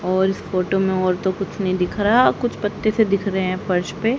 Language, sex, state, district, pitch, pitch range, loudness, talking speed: Hindi, female, Haryana, Rohtak, 190 Hz, 185-205 Hz, -20 LUFS, 255 wpm